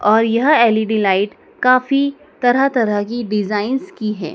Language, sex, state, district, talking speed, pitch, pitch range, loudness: Hindi, female, Madhya Pradesh, Dhar, 150 wpm, 225 Hz, 210-255 Hz, -16 LUFS